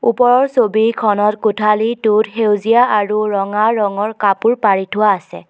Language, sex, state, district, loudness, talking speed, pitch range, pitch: Assamese, female, Assam, Kamrup Metropolitan, -14 LUFS, 120 wpm, 205-225 Hz, 215 Hz